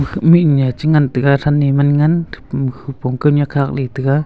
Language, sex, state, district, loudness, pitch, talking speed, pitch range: Wancho, male, Arunachal Pradesh, Longding, -15 LUFS, 140 Hz, 170 wpm, 135-150 Hz